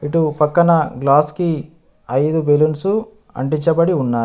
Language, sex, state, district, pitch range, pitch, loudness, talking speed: Telugu, male, Telangana, Adilabad, 145-170 Hz, 155 Hz, -16 LUFS, 100 wpm